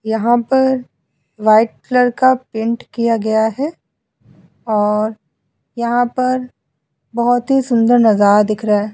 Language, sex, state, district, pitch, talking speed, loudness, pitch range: Hindi, female, Uttar Pradesh, Budaun, 230 Hz, 125 wpm, -15 LUFS, 210-245 Hz